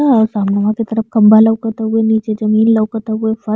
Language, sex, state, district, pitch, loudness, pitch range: Bhojpuri, female, Uttar Pradesh, Ghazipur, 220 Hz, -13 LUFS, 215-225 Hz